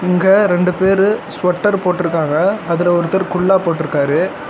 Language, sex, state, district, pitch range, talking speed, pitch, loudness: Tamil, male, Tamil Nadu, Chennai, 170-190 Hz, 120 wpm, 180 Hz, -15 LUFS